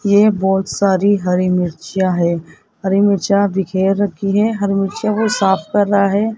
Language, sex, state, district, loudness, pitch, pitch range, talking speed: Hindi, male, Rajasthan, Jaipur, -16 LUFS, 195 Hz, 190-205 Hz, 170 wpm